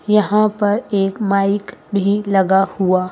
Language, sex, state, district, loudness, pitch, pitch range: Hindi, female, Madhya Pradesh, Bhopal, -17 LUFS, 200 Hz, 195-210 Hz